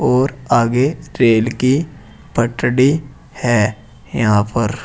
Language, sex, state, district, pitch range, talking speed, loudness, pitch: Hindi, male, Uttar Pradesh, Saharanpur, 115-135 Hz, 100 wpm, -16 LUFS, 120 Hz